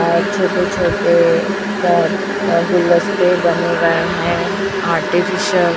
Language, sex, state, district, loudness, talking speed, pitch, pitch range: Hindi, female, Chhattisgarh, Raipur, -15 LUFS, 115 wpm, 180 Hz, 170-195 Hz